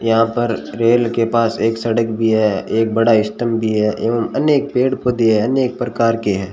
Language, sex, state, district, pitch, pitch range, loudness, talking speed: Hindi, male, Rajasthan, Bikaner, 115 Hz, 110-120 Hz, -16 LUFS, 200 wpm